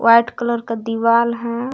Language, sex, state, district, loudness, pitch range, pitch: Hindi, female, Jharkhand, Palamu, -18 LUFS, 230-235 Hz, 235 Hz